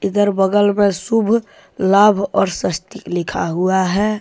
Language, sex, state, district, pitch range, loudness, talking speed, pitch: Hindi, male, Jharkhand, Deoghar, 190-210 Hz, -16 LUFS, 130 wpm, 205 Hz